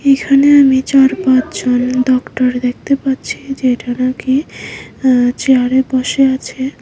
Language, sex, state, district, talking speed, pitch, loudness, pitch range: Bengali, female, Tripura, West Tripura, 125 wpm, 260 Hz, -13 LUFS, 255-270 Hz